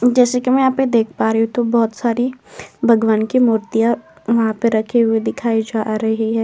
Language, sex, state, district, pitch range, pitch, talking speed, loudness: Hindi, female, Chhattisgarh, Korba, 220-245 Hz, 230 Hz, 215 wpm, -17 LUFS